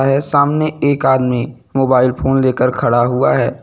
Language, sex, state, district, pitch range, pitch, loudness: Hindi, male, Uttar Pradesh, Lucknow, 125-140 Hz, 130 Hz, -14 LUFS